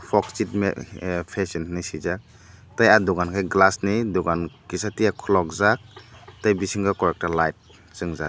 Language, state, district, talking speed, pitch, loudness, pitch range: Kokborok, Tripura, Dhalai, 150 wpm, 95 Hz, -23 LUFS, 85-100 Hz